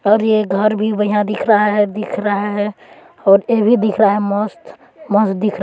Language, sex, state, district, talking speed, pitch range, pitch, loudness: Hindi, female, Chhattisgarh, Balrampur, 215 wpm, 205-215 Hz, 210 Hz, -15 LUFS